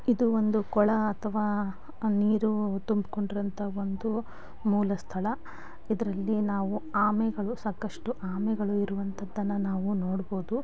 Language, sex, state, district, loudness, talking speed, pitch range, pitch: Kannada, female, Karnataka, Bijapur, -29 LUFS, 100 wpm, 200-220 Hz, 210 Hz